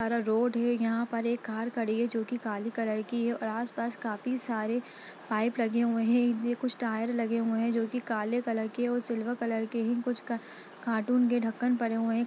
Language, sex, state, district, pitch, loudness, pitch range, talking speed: Hindi, female, Bihar, Lakhisarai, 230 Hz, -30 LUFS, 225-240 Hz, 220 wpm